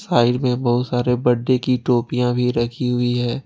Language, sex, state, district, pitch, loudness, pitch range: Hindi, male, Jharkhand, Ranchi, 125 Hz, -19 LUFS, 120-125 Hz